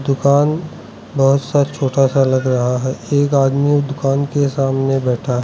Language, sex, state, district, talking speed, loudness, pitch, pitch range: Hindi, male, Arunachal Pradesh, Lower Dibang Valley, 165 wpm, -16 LUFS, 135 Hz, 135-145 Hz